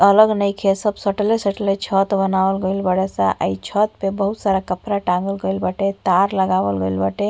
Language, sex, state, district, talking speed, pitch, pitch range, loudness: Bhojpuri, female, Uttar Pradesh, Ghazipur, 195 wpm, 195 Hz, 185-200 Hz, -19 LUFS